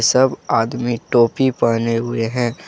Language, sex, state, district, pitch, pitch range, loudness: Hindi, male, Jharkhand, Deoghar, 120 Hz, 115-125 Hz, -18 LUFS